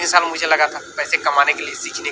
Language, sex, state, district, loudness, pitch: Hindi, male, Maharashtra, Gondia, -18 LUFS, 175 Hz